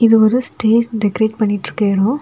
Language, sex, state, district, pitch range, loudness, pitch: Tamil, female, Tamil Nadu, Kanyakumari, 205-230 Hz, -15 LUFS, 220 Hz